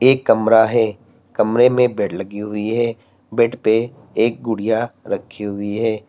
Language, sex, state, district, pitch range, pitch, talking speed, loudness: Hindi, male, Uttar Pradesh, Lalitpur, 105-120 Hz, 115 Hz, 160 wpm, -18 LUFS